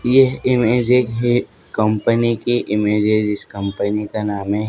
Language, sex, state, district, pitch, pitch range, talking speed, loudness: Hindi, male, Madhya Pradesh, Dhar, 110 Hz, 105-120 Hz, 165 wpm, -18 LUFS